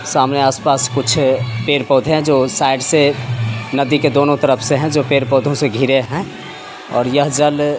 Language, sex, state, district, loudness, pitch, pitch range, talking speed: Hindi, male, Bihar, Samastipur, -15 LUFS, 140 Hz, 130-145 Hz, 175 wpm